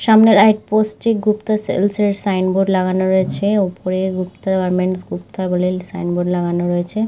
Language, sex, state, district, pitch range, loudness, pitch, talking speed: Bengali, female, West Bengal, Jhargram, 180-210 Hz, -17 LUFS, 190 Hz, 170 wpm